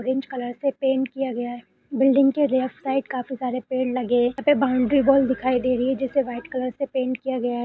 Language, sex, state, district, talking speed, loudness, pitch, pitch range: Hindi, female, Bihar, Saharsa, 250 wpm, -23 LUFS, 260 Hz, 250-270 Hz